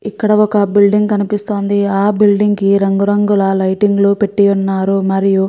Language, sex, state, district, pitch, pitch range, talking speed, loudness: Telugu, female, Andhra Pradesh, Guntur, 200 Hz, 195-205 Hz, 155 wpm, -13 LUFS